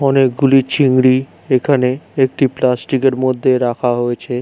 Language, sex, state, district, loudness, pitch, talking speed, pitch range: Bengali, male, West Bengal, Jhargram, -15 LUFS, 130 Hz, 120 wpm, 125-135 Hz